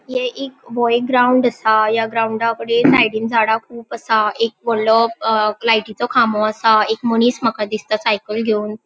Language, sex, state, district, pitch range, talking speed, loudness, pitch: Konkani, female, Goa, North and South Goa, 220-240 Hz, 155 wpm, -16 LUFS, 225 Hz